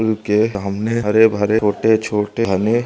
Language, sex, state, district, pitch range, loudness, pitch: Hindi, male, Andhra Pradesh, Anantapur, 105-110 Hz, -17 LUFS, 110 Hz